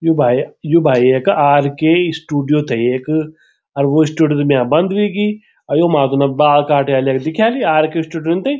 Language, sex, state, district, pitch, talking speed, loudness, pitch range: Garhwali, male, Uttarakhand, Tehri Garhwal, 155 Hz, 175 wpm, -14 LUFS, 140-165 Hz